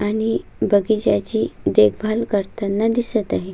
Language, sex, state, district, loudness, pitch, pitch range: Marathi, female, Maharashtra, Solapur, -19 LUFS, 210 Hz, 200-220 Hz